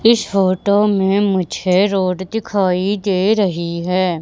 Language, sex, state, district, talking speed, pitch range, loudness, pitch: Hindi, female, Madhya Pradesh, Katni, 130 wpm, 185-205 Hz, -16 LUFS, 195 Hz